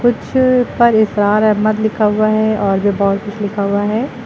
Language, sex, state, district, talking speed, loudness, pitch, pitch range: Hindi, female, Uttar Pradesh, Lucknow, 200 wpm, -14 LUFS, 215 Hz, 205-220 Hz